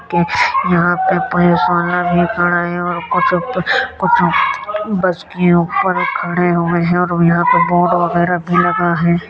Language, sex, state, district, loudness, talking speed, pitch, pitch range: Hindi, male, Uttar Pradesh, Jyotiba Phule Nagar, -14 LUFS, 170 wpm, 175 Hz, 170-180 Hz